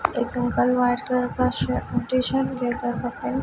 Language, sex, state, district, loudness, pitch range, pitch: Hindi, female, Chhattisgarh, Raipur, -24 LUFS, 245-255 Hz, 250 Hz